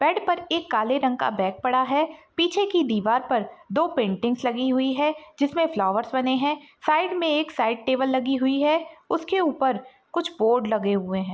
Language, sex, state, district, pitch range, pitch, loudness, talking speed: Hindi, female, Maharashtra, Dhule, 240-315 Hz, 265 Hz, -24 LUFS, 200 wpm